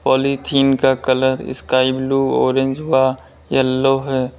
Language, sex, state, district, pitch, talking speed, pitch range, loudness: Hindi, male, Uttar Pradesh, Lalitpur, 130 Hz, 125 wpm, 130-135 Hz, -17 LUFS